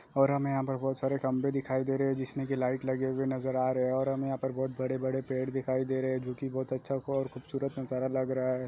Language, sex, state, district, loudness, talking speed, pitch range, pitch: Hindi, male, Goa, North and South Goa, -32 LUFS, 290 wpm, 130-135 Hz, 130 Hz